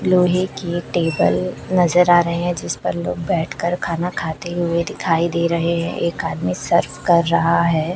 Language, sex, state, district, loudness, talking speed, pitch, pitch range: Hindi, male, Chhattisgarh, Raipur, -19 LUFS, 180 wpm, 170 Hz, 165-175 Hz